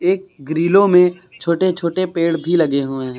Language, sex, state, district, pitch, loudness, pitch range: Hindi, male, Uttar Pradesh, Lucknow, 170 Hz, -17 LUFS, 160-185 Hz